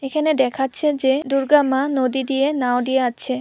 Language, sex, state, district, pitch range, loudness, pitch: Bengali, female, West Bengal, Purulia, 260-285 Hz, -19 LUFS, 270 Hz